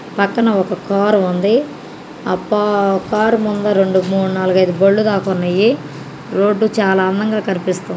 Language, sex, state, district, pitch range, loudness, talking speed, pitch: Telugu, female, Andhra Pradesh, Guntur, 185-210 Hz, -15 LUFS, 135 wpm, 195 Hz